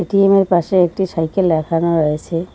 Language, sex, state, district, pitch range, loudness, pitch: Bengali, female, West Bengal, Cooch Behar, 165-190 Hz, -16 LUFS, 175 Hz